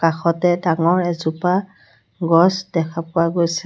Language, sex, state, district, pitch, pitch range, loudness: Assamese, female, Assam, Sonitpur, 170 Hz, 165-180 Hz, -18 LUFS